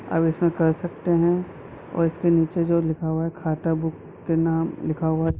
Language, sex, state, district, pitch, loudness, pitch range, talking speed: Hindi, male, Uttar Pradesh, Etah, 165 Hz, -23 LUFS, 160-170 Hz, 210 wpm